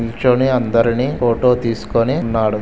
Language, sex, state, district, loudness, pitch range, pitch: Telugu, male, Andhra Pradesh, Srikakulam, -16 LUFS, 115-125 Hz, 115 Hz